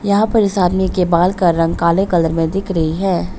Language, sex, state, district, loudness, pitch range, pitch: Hindi, female, Arunachal Pradesh, Papum Pare, -15 LUFS, 165-195 Hz, 180 Hz